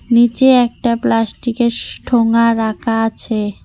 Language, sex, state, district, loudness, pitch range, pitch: Bengali, female, West Bengal, Cooch Behar, -15 LUFS, 225-240 Hz, 230 Hz